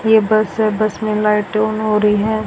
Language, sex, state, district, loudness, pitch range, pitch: Hindi, female, Haryana, Rohtak, -16 LUFS, 210-215 Hz, 215 Hz